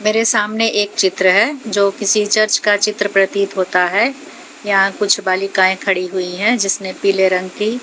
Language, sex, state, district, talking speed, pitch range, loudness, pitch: Hindi, female, Haryana, Jhajjar, 175 wpm, 190-215 Hz, -15 LUFS, 200 Hz